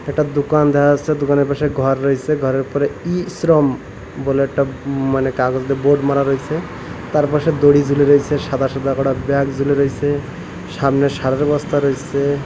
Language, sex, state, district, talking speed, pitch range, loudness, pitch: Bengali, male, Odisha, Malkangiri, 170 wpm, 135-145 Hz, -17 LUFS, 140 Hz